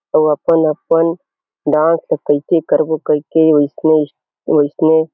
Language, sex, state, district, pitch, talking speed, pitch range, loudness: Chhattisgarhi, male, Chhattisgarh, Kabirdham, 155 Hz, 105 wpm, 150-165 Hz, -14 LUFS